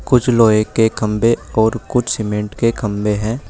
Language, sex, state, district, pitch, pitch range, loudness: Hindi, male, Uttar Pradesh, Shamli, 110 Hz, 105-115 Hz, -16 LUFS